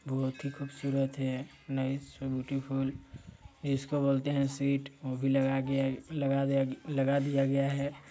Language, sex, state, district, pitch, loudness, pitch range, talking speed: Hindi, male, Chhattisgarh, Sarguja, 135 Hz, -32 LUFS, 135-140 Hz, 155 wpm